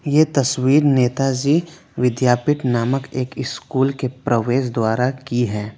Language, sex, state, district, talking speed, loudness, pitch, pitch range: Hindi, male, West Bengal, Alipurduar, 125 wpm, -19 LUFS, 130 Hz, 120-140 Hz